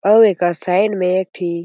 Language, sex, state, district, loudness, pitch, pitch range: Chhattisgarhi, male, Chhattisgarh, Jashpur, -16 LUFS, 185 Hz, 175-205 Hz